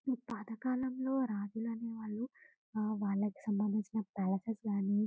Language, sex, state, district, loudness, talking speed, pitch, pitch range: Telugu, female, Telangana, Karimnagar, -37 LUFS, 95 wpm, 220 Hz, 205-230 Hz